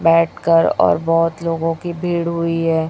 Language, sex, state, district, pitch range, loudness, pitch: Hindi, female, Chhattisgarh, Raipur, 165-170 Hz, -17 LUFS, 165 Hz